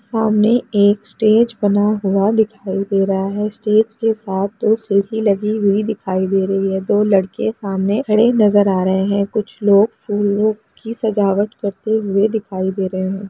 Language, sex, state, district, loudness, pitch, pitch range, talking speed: Hindi, female, Bihar, Jamui, -17 LUFS, 205 Hz, 195-220 Hz, 175 wpm